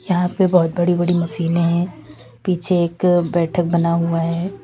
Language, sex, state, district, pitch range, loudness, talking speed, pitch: Hindi, female, Uttar Pradesh, Lalitpur, 170-180 Hz, -18 LUFS, 170 wpm, 175 Hz